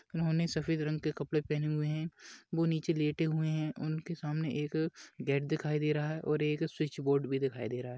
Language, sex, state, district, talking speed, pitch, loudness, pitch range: Hindi, male, Maharashtra, Pune, 235 wpm, 155 Hz, -34 LUFS, 150-160 Hz